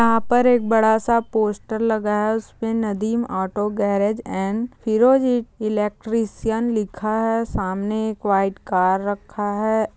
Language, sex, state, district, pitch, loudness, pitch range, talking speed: Hindi, female, Chhattisgarh, Balrampur, 220 Hz, -21 LUFS, 205-225 Hz, 140 wpm